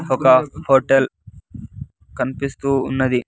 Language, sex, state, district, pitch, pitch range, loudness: Telugu, male, Andhra Pradesh, Sri Satya Sai, 130 Hz, 125-135 Hz, -18 LUFS